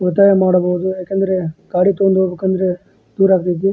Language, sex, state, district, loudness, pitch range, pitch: Kannada, male, Karnataka, Dharwad, -15 LUFS, 180-195 Hz, 185 Hz